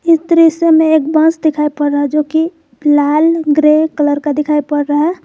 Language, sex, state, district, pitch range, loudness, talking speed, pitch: Hindi, female, Jharkhand, Garhwa, 295-320 Hz, -12 LUFS, 205 wpm, 305 Hz